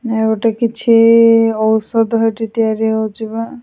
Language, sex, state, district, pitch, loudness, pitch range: Odia, female, Odisha, Khordha, 225 Hz, -13 LUFS, 220-230 Hz